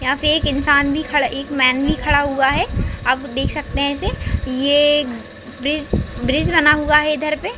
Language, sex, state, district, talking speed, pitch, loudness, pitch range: Hindi, female, Chhattisgarh, Raigarh, 205 wpm, 285 Hz, -17 LUFS, 270-300 Hz